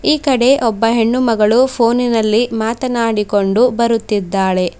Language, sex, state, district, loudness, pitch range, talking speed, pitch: Kannada, female, Karnataka, Bidar, -14 LUFS, 215-245 Hz, 100 wpm, 230 Hz